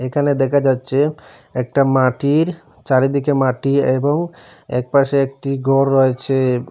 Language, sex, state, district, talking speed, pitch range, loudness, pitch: Bengali, male, Assam, Hailakandi, 115 wpm, 130-140 Hz, -17 LUFS, 135 Hz